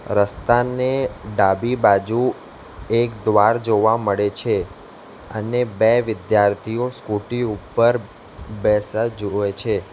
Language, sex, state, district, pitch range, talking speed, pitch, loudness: Gujarati, male, Gujarat, Valsad, 100-120 Hz, 90 wpm, 110 Hz, -20 LUFS